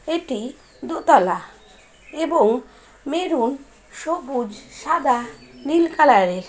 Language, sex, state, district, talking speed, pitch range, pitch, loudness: Bengali, female, West Bengal, Paschim Medinipur, 85 wpm, 235-325 Hz, 275 Hz, -20 LUFS